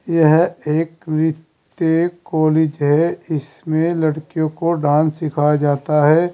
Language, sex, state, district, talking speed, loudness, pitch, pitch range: Hindi, male, Uttar Pradesh, Saharanpur, 115 wpm, -17 LUFS, 155 Hz, 150-165 Hz